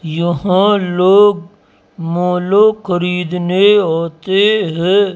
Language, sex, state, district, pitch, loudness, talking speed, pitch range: Hindi, male, Rajasthan, Jaipur, 180 Hz, -13 LUFS, 70 wpm, 175-200 Hz